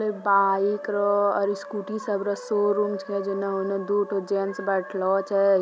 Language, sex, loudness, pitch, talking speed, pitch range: Magahi, female, -25 LUFS, 200 Hz, 150 wpm, 195-205 Hz